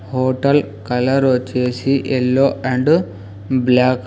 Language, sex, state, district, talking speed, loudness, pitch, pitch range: Telugu, male, Telangana, Hyderabad, 105 wpm, -17 LUFS, 130 Hz, 125-135 Hz